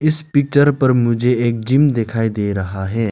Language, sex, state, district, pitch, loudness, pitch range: Hindi, male, Arunachal Pradesh, Lower Dibang Valley, 120 Hz, -16 LUFS, 110-140 Hz